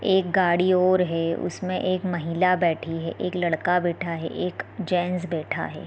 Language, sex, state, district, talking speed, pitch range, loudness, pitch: Hindi, female, Bihar, East Champaran, 175 wpm, 165-185 Hz, -24 LUFS, 180 Hz